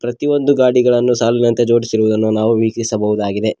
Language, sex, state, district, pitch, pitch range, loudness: Kannada, male, Karnataka, Koppal, 115 Hz, 110-120 Hz, -14 LUFS